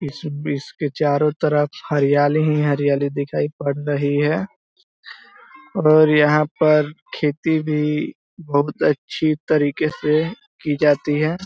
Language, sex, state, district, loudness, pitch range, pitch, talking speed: Hindi, male, Bihar, East Champaran, -19 LUFS, 145-155 Hz, 150 Hz, 125 wpm